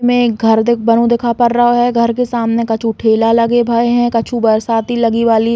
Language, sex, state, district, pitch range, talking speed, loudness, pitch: Bundeli, female, Uttar Pradesh, Hamirpur, 225-240 Hz, 235 wpm, -13 LUFS, 235 Hz